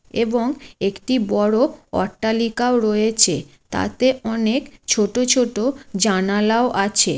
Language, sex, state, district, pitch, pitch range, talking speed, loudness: Bengali, female, West Bengal, Jalpaiguri, 225 Hz, 210-250 Hz, 90 wpm, -19 LUFS